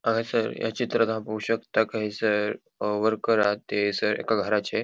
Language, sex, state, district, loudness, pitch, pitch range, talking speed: Konkani, male, Goa, North and South Goa, -26 LUFS, 110 Hz, 105-115 Hz, 175 wpm